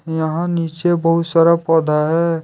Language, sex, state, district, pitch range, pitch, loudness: Hindi, male, Jharkhand, Deoghar, 160-170 Hz, 165 Hz, -16 LUFS